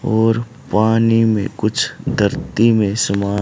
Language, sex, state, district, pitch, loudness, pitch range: Hindi, male, Haryana, Charkhi Dadri, 110 Hz, -17 LUFS, 105-115 Hz